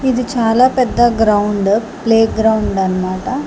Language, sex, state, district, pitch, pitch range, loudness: Telugu, female, Telangana, Hyderabad, 225 Hz, 205-250 Hz, -14 LUFS